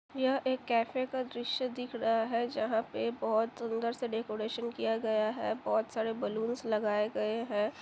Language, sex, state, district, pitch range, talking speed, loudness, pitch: Hindi, female, Chhattisgarh, Bilaspur, 220-245 Hz, 175 wpm, -33 LUFS, 230 Hz